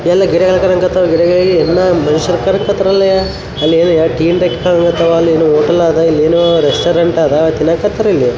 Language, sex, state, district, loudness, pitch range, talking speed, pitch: Kannada, male, Karnataka, Raichur, -11 LUFS, 160-180 Hz, 130 wpm, 170 Hz